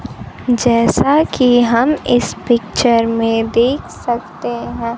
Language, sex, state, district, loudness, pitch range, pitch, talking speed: Hindi, female, Bihar, Kaimur, -15 LUFS, 230-245 Hz, 235 Hz, 110 wpm